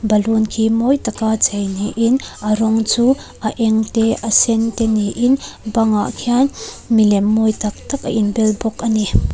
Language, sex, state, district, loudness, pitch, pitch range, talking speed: Mizo, female, Mizoram, Aizawl, -16 LUFS, 220 Hz, 215-230 Hz, 185 wpm